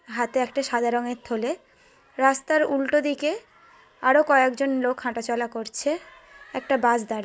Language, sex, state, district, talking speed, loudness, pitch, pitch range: Bengali, female, West Bengal, Kolkata, 140 wpm, -24 LUFS, 265 Hz, 240-290 Hz